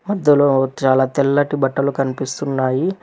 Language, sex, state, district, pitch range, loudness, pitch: Telugu, male, Telangana, Hyderabad, 135-145 Hz, -17 LUFS, 140 Hz